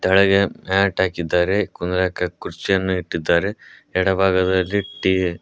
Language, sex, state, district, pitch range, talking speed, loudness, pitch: Kannada, male, Karnataka, Koppal, 90-95 Hz, 90 wpm, -20 LUFS, 95 Hz